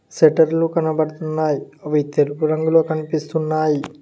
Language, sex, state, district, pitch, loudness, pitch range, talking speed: Telugu, male, Telangana, Mahabubabad, 155 Hz, -19 LUFS, 150-160 Hz, 90 wpm